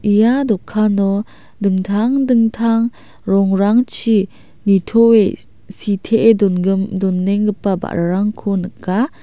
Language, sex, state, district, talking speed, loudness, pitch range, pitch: Garo, female, Meghalaya, South Garo Hills, 65 wpm, -15 LUFS, 195-225 Hz, 205 Hz